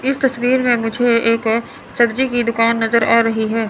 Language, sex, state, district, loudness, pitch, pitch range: Hindi, female, Chandigarh, Chandigarh, -16 LUFS, 230 Hz, 225-245 Hz